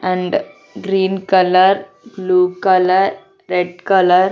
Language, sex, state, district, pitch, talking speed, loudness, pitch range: Telugu, female, Andhra Pradesh, Sri Satya Sai, 185 Hz, 110 wpm, -15 LUFS, 180-195 Hz